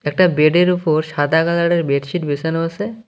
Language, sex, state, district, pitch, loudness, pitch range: Bengali, male, West Bengal, Cooch Behar, 165 Hz, -17 LUFS, 155-175 Hz